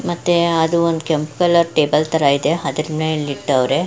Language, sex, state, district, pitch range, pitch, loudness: Kannada, female, Karnataka, Chamarajanagar, 150-170 Hz, 160 Hz, -17 LUFS